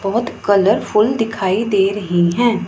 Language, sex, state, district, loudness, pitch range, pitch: Hindi, female, Punjab, Pathankot, -16 LUFS, 195-225 Hz, 205 Hz